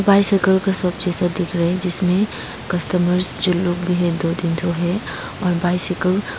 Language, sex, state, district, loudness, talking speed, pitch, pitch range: Hindi, female, Arunachal Pradesh, Papum Pare, -19 LUFS, 190 wpm, 180 Hz, 175-185 Hz